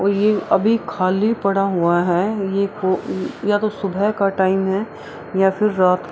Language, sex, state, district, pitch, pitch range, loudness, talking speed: Hindi, female, Bihar, Araria, 195 Hz, 190-210 Hz, -19 LUFS, 175 wpm